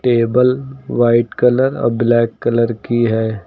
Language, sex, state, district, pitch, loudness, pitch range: Hindi, male, Uttar Pradesh, Lucknow, 120 Hz, -15 LUFS, 115-125 Hz